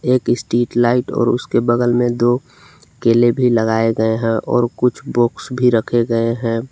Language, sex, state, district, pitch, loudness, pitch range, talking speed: Hindi, male, Jharkhand, Palamu, 120 Hz, -16 LUFS, 115-125 Hz, 180 wpm